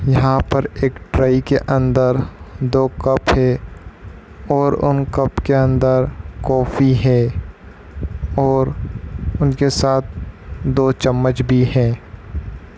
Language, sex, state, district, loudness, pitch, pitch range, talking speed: Hindi, male, Andhra Pradesh, Anantapur, -17 LUFS, 130 Hz, 100-135 Hz, 110 wpm